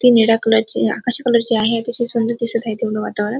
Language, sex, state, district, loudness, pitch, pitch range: Marathi, female, Maharashtra, Dhule, -17 LUFS, 230 Hz, 225-235 Hz